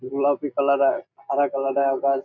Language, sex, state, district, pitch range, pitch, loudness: Bengali, male, West Bengal, Jhargram, 135-140 Hz, 140 Hz, -22 LUFS